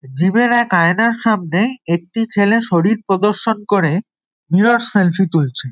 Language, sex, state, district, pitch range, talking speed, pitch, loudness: Bengali, male, West Bengal, Jalpaiguri, 170-225 Hz, 135 wpm, 200 Hz, -15 LUFS